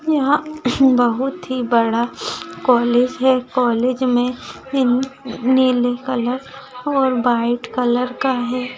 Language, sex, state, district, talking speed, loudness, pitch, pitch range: Hindi, female, Maharashtra, Aurangabad, 110 wpm, -18 LUFS, 250 Hz, 245-265 Hz